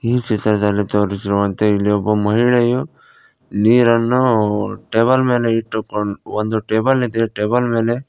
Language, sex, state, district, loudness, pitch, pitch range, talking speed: Kannada, male, Karnataka, Koppal, -17 LUFS, 110 Hz, 105-120 Hz, 120 wpm